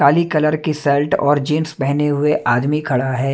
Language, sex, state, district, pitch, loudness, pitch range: Hindi, male, Punjab, Kapurthala, 145 Hz, -17 LUFS, 140-155 Hz